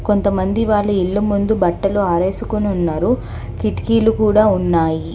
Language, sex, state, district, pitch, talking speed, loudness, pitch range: Telugu, female, Telangana, Hyderabad, 200 Hz, 115 wpm, -17 LUFS, 170-210 Hz